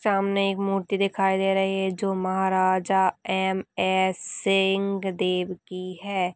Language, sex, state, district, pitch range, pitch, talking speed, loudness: Hindi, female, Chhattisgarh, Sarguja, 185-195 Hz, 190 Hz, 130 wpm, -24 LUFS